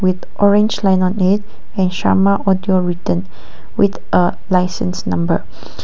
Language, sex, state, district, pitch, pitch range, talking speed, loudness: English, female, Nagaland, Kohima, 185 Hz, 180-200 Hz, 135 wpm, -16 LUFS